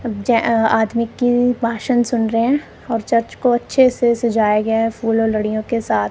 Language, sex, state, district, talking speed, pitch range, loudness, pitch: Hindi, female, Punjab, Kapurthala, 195 wpm, 225-240 Hz, -17 LUFS, 230 Hz